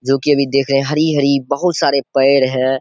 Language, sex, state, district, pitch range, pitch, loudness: Hindi, male, Bihar, Saharsa, 135-145 Hz, 140 Hz, -15 LUFS